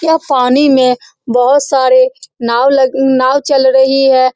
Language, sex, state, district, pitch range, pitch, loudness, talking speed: Hindi, female, Bihar, Saran, 255-280 Hz, 265 Hz, -10 LUFS, 150 wpm